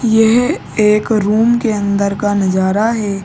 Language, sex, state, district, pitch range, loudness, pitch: Hindi, male, Uttar Pradesh, Gorakhpur, 200-225 Hz, -14 LUFS, 210 Hz